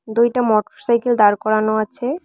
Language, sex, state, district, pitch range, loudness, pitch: Bengali, female, West Bengal, Cooch Behar, 215-245 Hz, -17 LUFS, 235 Hz